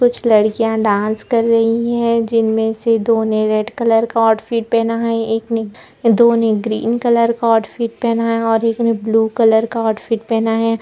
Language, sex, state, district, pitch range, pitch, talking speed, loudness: Hindi, female, Bihar, Gopalganj, 220-230 Hz, 225 Hz, 195 wpm, -15 LUFS